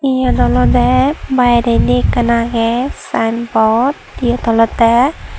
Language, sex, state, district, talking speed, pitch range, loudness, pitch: Chakma, female, Tripura, Dhalai, 100 wpm, 230-255 Hz, -13 LUFS, 240 Hz